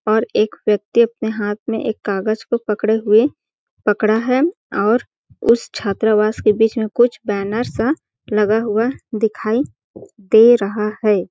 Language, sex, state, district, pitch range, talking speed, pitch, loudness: Hindi, female, Chhattisgarh, Balrampur, 210-235 Hz, 155 wpm, 220 Hz, -17 LUFS